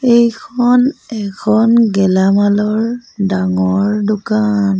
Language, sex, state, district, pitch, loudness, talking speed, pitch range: Assamese, female, Assam, Sonitpur, 210 Hz, -14 LUFS, 60 wpm, 195-235 Hz